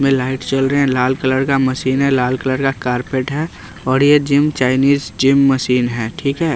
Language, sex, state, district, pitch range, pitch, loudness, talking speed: Hindi, male, Bihar, West Champaran, 130-140 Hz, 135 Hz, -16 LUFS, 220 wpm